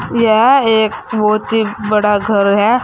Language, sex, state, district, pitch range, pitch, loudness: Hindi, female, Uttar Pradesh, Saharanpur, 210-225 Hz, 215 Hz, -13 LUFS